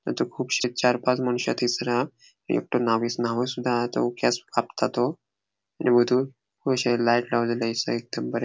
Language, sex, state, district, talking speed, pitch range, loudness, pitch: Konkani, male, Goa, North and South Goa, 85 wpm, 115-125 Hz, -25 LUFS, 120 Hz